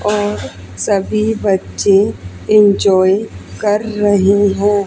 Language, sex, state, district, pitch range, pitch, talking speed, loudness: Hindi, female, Haryana, Charkhi Dadri, 185-205 Hz, 200 Hz, 85 wpm, -14 LUFS